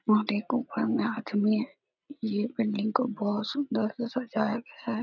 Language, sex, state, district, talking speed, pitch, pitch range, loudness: Hindi, female, Jharkhand, Sahebganj, 180 wpm, 220 Hz, 215-250 Hz, -29 LUFS